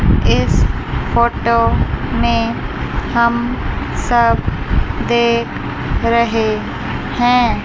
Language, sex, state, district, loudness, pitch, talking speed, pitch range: Hindi, female, Chandigarh, Chandigarh, -16 LUFS, 235 Hz, 65 wpm, 235-240 Hz